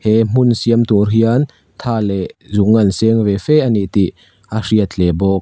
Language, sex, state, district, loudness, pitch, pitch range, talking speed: Mizo, male, Mizoram, Aizawl, -15 LUFS, 110 Hz, 100-115 Hz, 200 wpm